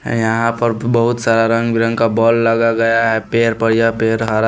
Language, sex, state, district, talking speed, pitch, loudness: Hindi, male, Punjab, Pathankot, 230 wpm, 115 Hz, -15 LUFS